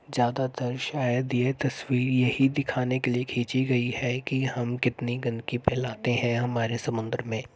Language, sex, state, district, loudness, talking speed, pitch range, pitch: Hindi, male, Uttar Pradesh, Jyotiba Phule Nagar, -27 LUFS, 160 wpm, 120-130 Hz, 125 Hz